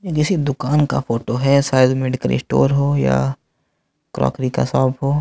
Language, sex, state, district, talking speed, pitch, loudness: Hindi, male, Bihar, Katihar, 160 wpm, 130 Hz, -18 LUFS